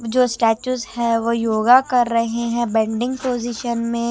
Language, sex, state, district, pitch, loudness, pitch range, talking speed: Hindi, female, Chhattisgarh, Raipur, 235 Hz, -19 LUFS, 230-245 Hz, 130 wpm